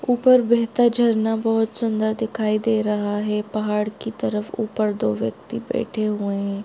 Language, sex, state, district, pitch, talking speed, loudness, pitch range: Hindi, female, Jharkhand, Jamtara, 220 Hz, 160 wpm, -21 LUFS, 210-230 Hz